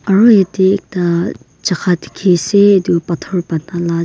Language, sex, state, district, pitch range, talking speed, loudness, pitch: Nagamese, female, Nagaland, Kohima, 170-195 Hz, 165 wpm, -14 LUFS, 180 Hz